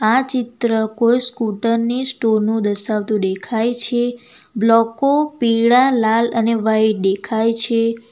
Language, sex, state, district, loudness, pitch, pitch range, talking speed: Gujarati, female, Gujarat, Valsad, -16 LUFS, 230 Hz, 220-245 Hz, 125 wpm